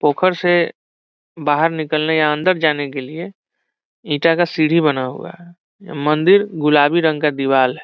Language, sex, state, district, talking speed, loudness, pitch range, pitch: Hindi, male, Bihar, Saran, 160 wpm, -16 LUFS, 145-170 Hz, 155 Hz